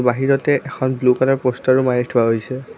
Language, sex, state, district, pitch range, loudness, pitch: Assamese, female, Assam, Kamrup Metropolitan, 125-135 Hz, -17 LUFS, 130 Hz